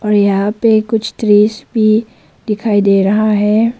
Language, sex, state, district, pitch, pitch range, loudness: Hindi, female, Arunachal Pradesh, Papum Pare, 215 Hz, 205-220 Hz, -13 LUFS